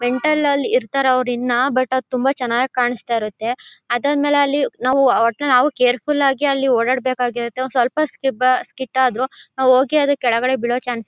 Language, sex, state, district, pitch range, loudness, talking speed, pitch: Kannada, female, Karnataka, Mysore, 245-275 Hz, -18 LUFS, 180 wpm, 255 Hz